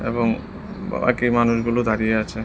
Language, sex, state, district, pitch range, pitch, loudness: Bengali, male, Tripura, West Tripura, 110-120 Hz, 115 Hz, -21 LUFS